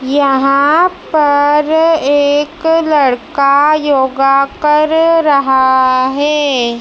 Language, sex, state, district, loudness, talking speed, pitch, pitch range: Hindi, female, Madhya Pradesh, Dhar, -11 LUFS, 70 wpm, 285 Hz, 270-305 Hz